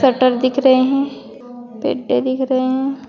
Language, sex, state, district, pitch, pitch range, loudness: Hindi, female, Uttar Pradesh, Shamli, 260 Hz, 255-270 Hz, -17 LUFS